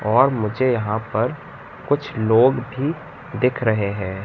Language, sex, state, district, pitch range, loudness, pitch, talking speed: Hindi, male, Madhya Pradesh, Katni, 110-135 Hz, -20 LUFS, 120 Hz, 140 wpm